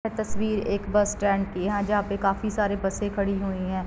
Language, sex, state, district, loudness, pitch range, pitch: Hindi, female, Uttar Pradesh, Varanasi, -26 LUFS, 195-210 Hz, 200 Hz